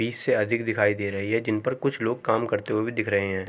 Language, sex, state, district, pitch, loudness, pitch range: Hindi, male, Uttar Pradesh, Jalaun, 110 Hz, -25 LUFS, 105-120 Hz